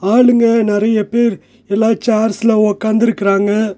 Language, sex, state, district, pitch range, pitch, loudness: Tamil, male, Tamil Nadu, Nilgiris, 205-230 Hz, 220 Hz, -13 LUFS